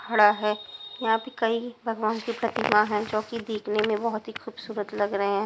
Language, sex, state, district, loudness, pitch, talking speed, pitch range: Hindi, female, Punjab, Pathankot, -26 LUFS, 220 Hz, 210 wpm, 210-230 Hz